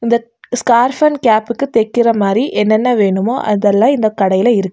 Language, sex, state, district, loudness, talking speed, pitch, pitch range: Tamil, female, Tamil Nadu, Nilgiris, -13 LUFS, 150 wpm, 230 Hz, 210-240 Hz